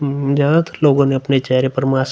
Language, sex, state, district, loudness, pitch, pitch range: Hindi, male, Uttar Pradesh, Hamirpur, -16 LUFS, 140 Hz, 135-145 Hz